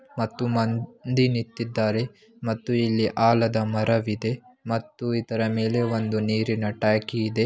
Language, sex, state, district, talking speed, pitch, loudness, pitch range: Kannada, male, Karnataka, Belgaum, 115 wpm, 115 Hz, -25 LUFS, 110-120 Hz